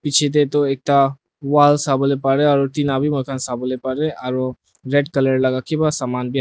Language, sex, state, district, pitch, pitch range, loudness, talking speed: Nagamese, male, Nagaland, Dimapur, 135 Hz, 130-145 Hz, -18 LUFS, 180 wpm